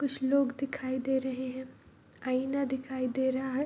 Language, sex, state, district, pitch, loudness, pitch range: Hindi, female, Bihar, Kishanganj, 265 Hz, -32 LUFS, 260-275 Hz